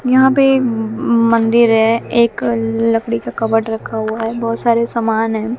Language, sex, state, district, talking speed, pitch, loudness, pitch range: Hindi, female, Haryana, Jhajjar, 160 wpm, 230 Hz, -15 LUFS, 225-235 Hz